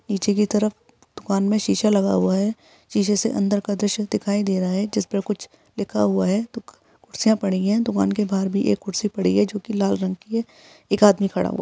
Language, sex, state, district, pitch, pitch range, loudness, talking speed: Hindi, female, Chhattisgarh, Rajnandgaon, 205 Hz, 195-215 Hz, -21 LUFS, 240 wpm